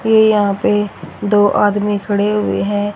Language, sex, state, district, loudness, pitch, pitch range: Hindi, female, Haryana, Rohtak, -15 LUFS, 205 Hz, 205-210 Hz